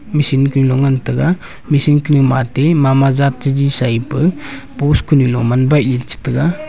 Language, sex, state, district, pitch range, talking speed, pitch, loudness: Wancho, male, Arunachal Pradesh, Longding, 130-150 Hz, 180 wpm, 140 Hz, -14 LUFS